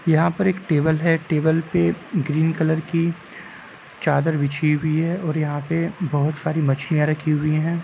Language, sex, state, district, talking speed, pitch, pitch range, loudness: Hindi, male, Uttar Pradesh, Jalaun, 175 wpm, 160 Hz, 150-165 Hz, -21 LUFS